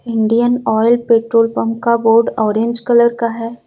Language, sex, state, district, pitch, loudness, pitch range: Hindi, female, Uttar Pradesh, Lucknow, 230 Hz, -14 LUFS, 225-235 Hz